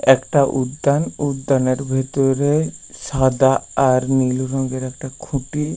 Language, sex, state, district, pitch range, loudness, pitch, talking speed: Bengali, male, West Bengal, Paschim Medinipur, 130-140 Hz, -19 LUFS, 135 Hz, 115 wpm